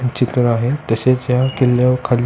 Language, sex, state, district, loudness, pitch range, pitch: Marathi, male, Maharashtra, Pune, -16 LUFS, 125-130 Hz, 125 Hz